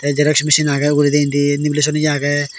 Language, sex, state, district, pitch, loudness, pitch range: Chakma, male, Tripura, Dhalai, 145 Hz, -15 LUFS, 145-150 Hz